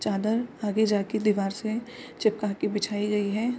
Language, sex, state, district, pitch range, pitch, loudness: Hindi, female, Bihar, Darbhanga, 205-225 Hz, 210 Hz, -27 LUFS